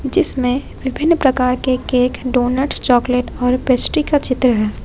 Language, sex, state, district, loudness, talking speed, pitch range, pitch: Hindi, female, Jharkhand, Ranchi, -16 LUFS, 150 wpm, 250-270 Hz, 255 Hz